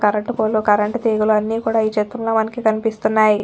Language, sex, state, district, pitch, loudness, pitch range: Telugu, female, Telangana, Nalgonda, 220 Hz, -18 LUFS, 210-225 Hz